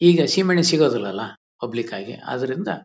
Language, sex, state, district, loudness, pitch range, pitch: Kannada, male, Karnataka, Bellary, -21 LUFS, 115-175 Hz, 155 Hz